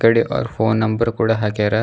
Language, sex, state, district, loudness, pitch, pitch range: Kannada, male, Karnataka, Bidar, -18 LUFS, 110 Hz, 110-115 Hz